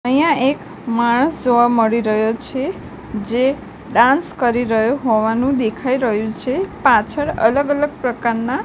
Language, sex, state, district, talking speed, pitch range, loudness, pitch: Gujarati, female, Gujarat, Gandhinagar, 130 wpm, 230-270 Hz, -17 LUFS, 245 Hz